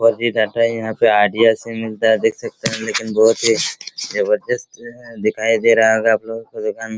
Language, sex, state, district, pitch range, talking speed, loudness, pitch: Hindi, male, Bihar, Araria, 110-115 Hz, 215 wpm, -17 LUFS, 115 Hz